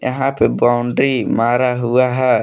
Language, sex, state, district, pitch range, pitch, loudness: Hindi, male, Jharkhand, Palamu, 120-130 Hz, 125 Hz, -16 LUFS